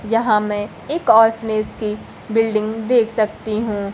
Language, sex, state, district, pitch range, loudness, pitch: Hindi, female, Bihar, Kaimur, 215-225 Hz, -18 LUFS, 220 Hz